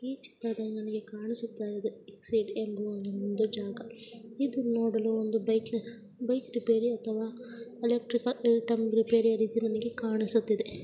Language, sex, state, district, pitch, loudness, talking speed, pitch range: Kannada, female, Karnataka, Dharwad, 225 Hz, -31 LUFS, 115 wpm, 220-235 Hz